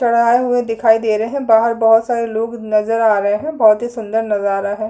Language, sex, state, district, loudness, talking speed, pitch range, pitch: Hindi, female, Chhattisgarh, Sukma, -15 LUFS, 255 wpm, 215-235 Hz, 225 Hz